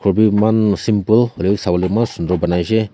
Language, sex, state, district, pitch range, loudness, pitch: Nagamese, male, Nagaland, Kohima, 90-110 Hz, -16 LUFS, 105 Hz